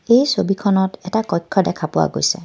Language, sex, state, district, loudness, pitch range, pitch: Assamese, female, Assam, Kamrup Metropolitan, -18 LUFS, 195-235 Hz, 200 Hz